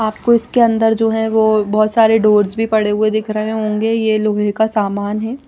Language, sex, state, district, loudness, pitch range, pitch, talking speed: Hindi, female, Odisha, Nuapada, -15 LUFS, 215-225 Hz, 220 Hz, 220 wpm